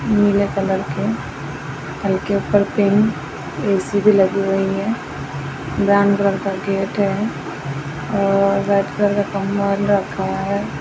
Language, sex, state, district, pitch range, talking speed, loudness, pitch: Hindi, female, Chhattisgarh, Raigarh, 190-200 Hz, 140 wpm, -19 LUFS, 195 Hz